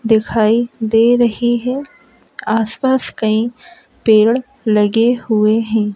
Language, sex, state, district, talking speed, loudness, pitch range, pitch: Hindi, male, Madhya Pradesh, Bhopal, 100 wpm, -15 LUFS, 220-245 Hz, 225 Hz